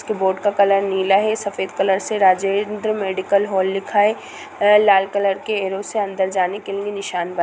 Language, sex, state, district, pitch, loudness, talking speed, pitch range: Hindi, female, Bihar, Gopalganj, 195 Hz, -19 LUFS, 195 wpm, 190-205 Hz